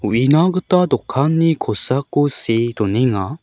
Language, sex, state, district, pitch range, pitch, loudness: Garo, male, Meghalaya, South Garo Hills, 120-165 Hz, 140 Hz, -17 LUFS